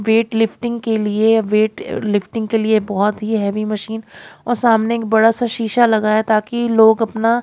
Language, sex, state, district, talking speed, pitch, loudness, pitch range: Hindi, female, Haryana, Jhajjar, 185 wpm, 220 Hz, -16 LUFS, 215-230 Hz